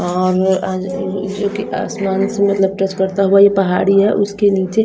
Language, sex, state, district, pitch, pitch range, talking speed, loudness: Hindi, female, Odisha, Nuapada, 195 Hz, 190-200 Hz, 150 wpm, -15 LUFS